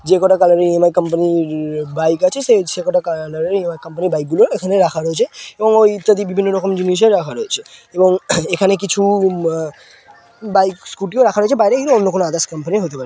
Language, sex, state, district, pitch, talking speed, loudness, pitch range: Bengali, male, West Bengal, Purulia, 185 Hz, 200 wpm, -15 LUFS, 170-200 Hz